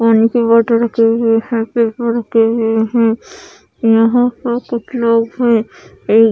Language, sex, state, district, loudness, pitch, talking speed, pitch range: Hindi, female, Odisha, Khordha, -14 LUFS, 230 Hz, 160 wpm, 225-235 Hz